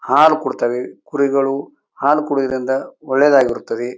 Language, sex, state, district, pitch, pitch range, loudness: Kannada, male, Karnataka, Bijapur, 135 Hz, 130-145 Hz, -17 LUFS